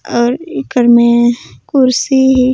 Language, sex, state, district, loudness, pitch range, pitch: Sadri, female, Chhattisgarh, Jashpur, -11 LUFS, 240-265 Hz, 255 Hz